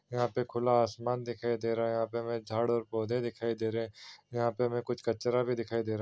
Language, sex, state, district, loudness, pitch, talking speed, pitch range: Hindi, male, Chhattisgarh, Raigarh, -33 LUFS, 120 Hz, 280 wpm, 115-120 Hz